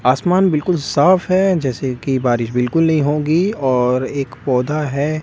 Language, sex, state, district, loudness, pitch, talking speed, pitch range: Hindi, male, Delhi, New Delhi, -16 LUFS, 145 Hz, 160 wpm, 130-165 Hz